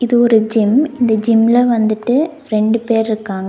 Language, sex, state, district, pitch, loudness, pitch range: Tamil, female, Tamil Nadu, Nilgiris, 225 Hz, -14 LUFS, 220-245 Hz